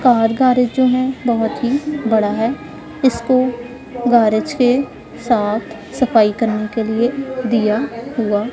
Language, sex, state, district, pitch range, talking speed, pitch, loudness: Hindi, female, Punjab, Pathankot, 225-255 Hz, 125 wpm, 245 Hz, -17 LUFS